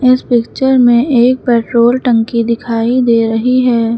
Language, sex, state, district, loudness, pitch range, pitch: Hindi, female, Uttar Pradesh, Lucknow, -11 LUFS, 230-255 Hz, 240 Hz